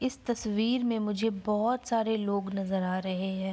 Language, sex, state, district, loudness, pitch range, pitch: Hindi, female, Bihar, Araria, -30 LUFS, 195-230 Hz, 215 Hz